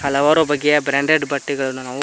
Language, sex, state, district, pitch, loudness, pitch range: Kannada, male, Karnataka, Koppal, 140 Hz, -17 LUFS, 140-150 Hz